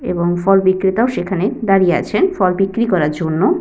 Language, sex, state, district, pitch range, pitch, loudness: Bengali, female, West Bengal, Purulia, 180-215 Hz, 190 Hz, -15 LUFS